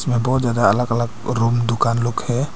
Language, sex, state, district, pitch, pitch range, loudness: Hindi, male, Arunachal Pradesh, Papum Pare, 120 Hz, 115-125 Hz, -19 LUFS